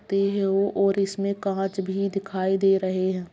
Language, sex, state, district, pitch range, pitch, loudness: Hindi, female, Bihar, Purnia, 190-195 Hz, 195 Hz, -24 LUFS